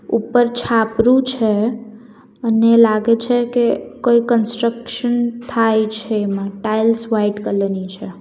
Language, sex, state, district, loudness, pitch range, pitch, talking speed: Gujarati, female, Gujarat, Valsad, -17 LUFS, 220-235 Hz, 230 Hz, 125 wpm